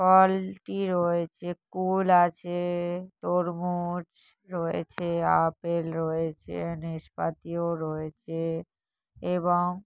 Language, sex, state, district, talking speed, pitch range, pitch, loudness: Bengali, female, West Bengal, Jhargram, 65 wpm, 165-180 Hz, 175 Hz, -28 LUFS